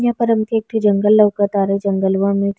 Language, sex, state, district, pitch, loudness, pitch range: Bhojpuri, female, Bihar, East Champaran, 205 Hz, -16 LUFS, 200-220 Hz